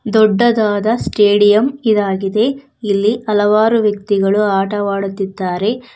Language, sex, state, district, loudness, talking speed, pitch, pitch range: Kannada, female, Karnataka, Bangalore, -14 LUFS, 70 wpm, 210 Hz, 200-220 Hz